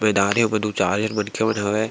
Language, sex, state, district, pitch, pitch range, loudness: Chhattisgarhi, male, Chhattisgarh, Sarguja, 105 Hz, 100-110 Hz, -21 LUFS